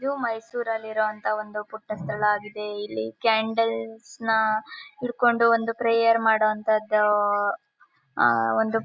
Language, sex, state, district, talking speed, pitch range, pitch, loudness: Kannada, female, Karnataka, Mysore, 110 wpm, 210-230 Hz, 220 Hz, -24 LUFS